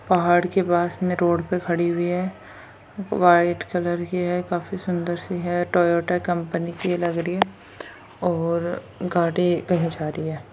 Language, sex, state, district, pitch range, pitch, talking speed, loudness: Hindi, female, Uttarakhand, Uttarkashi, 170-180 Hz, 175 Hz, 165 wpm, -23 LUFS